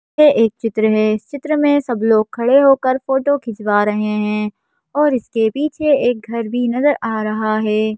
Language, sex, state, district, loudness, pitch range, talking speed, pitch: Hindi, female, Madhya Pradesh, Bhopal, -16 LUFS, 215-275 Hz, 190 wpm, 230 Hz